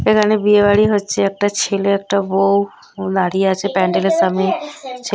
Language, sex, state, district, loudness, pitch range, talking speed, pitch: Bengali, female, West Bengal, North 24 Parganas, -16 LUFS, 195-210 Hz, 165 wpm, 200 Hz